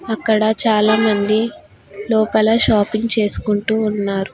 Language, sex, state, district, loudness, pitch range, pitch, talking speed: Telugu, female, Telangana, Hyderabad, -16 LUFS, 205-220 Hz, 215 Hz, 85 wpm